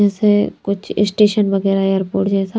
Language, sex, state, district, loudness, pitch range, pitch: Hindi, female, Bihar, Patna, -16 LUFS, 195-205 Hz, 200 Hz